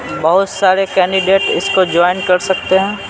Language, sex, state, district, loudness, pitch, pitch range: Hindi, male, Bihar, Patna, -13 LUFS, 190 Hz, 185-195 Hz